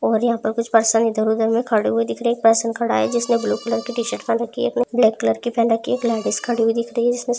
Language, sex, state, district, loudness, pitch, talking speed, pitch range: Hindi, female, Bihar, Madhepura, -19 LUFS, 230 Hz, 335 wpm, 225-235 Hz